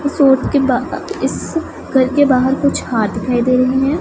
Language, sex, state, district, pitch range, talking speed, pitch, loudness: Hindi, female, Punjab, Pathankot, 255-280 Hz, 150 wpm, 265 Hz, -15 LUFS